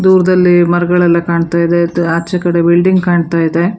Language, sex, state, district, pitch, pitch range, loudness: Kannada, female, Karnataka, Bangalore, 175 Hz, 170-180 Hz, -11 LUFS